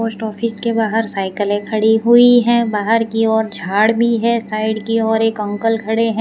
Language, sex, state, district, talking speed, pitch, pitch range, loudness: Hindi, female, Gujarat, Valsad, 205 wpm, 225 Hz, 215-230 Hz, -16 LUFS